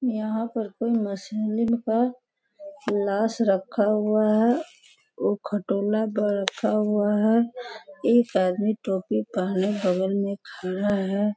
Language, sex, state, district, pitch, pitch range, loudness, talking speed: Hindi, male, Bihar, Sitamarhi, 210 Hz, 200-230 Hz, -24 LUFS, 120 wpm